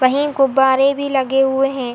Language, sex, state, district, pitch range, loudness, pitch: Hindi, female, Uttar Pradesh, Hamirpur, 265-275 Hz, -16 LUFS, 270 Hz